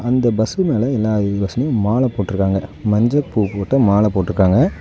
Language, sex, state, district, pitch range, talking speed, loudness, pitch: Tamil, male, Tamil Nadu, Nilgiris, 100-125 Hz, 150 wpm, -17 LUFS, 110 Hz